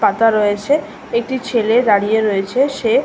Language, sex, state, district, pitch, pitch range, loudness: Bengali, female, West Bengal, Malda, 225 Hz, 205-260 Hz, -16 LUFS